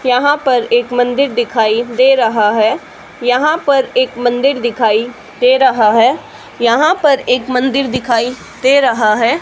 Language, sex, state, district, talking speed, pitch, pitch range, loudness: Hindi, female, Haryana, Charkhi Dadri, 155 wpm, 250 Hz, 235-265 Hz, -13 LUFS